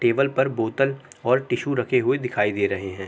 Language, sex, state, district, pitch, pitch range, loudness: Hindi, male, Uttar Pradesh, Jalaun, 125 Hz, 105-135 Hz, -23 LUFS